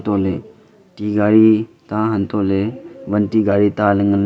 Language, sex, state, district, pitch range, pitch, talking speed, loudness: Wancho, male, Arunachal Pradesh, Longding, 100-110 Hz, 105 Hz, 195 wpm, -17 LUFS